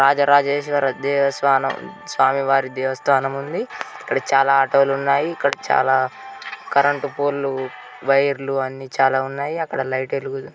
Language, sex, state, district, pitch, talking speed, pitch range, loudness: Telugu, male, Telangana, Karimnagar, 135 Hz, 125 wpm, 135-140 Hz, -20 LUFS